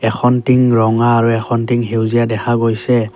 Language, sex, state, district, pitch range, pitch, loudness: Assamese, male, Assam, Kamrup Metropolitan, 115-120 Hz, 120 Hz, -14 LUFS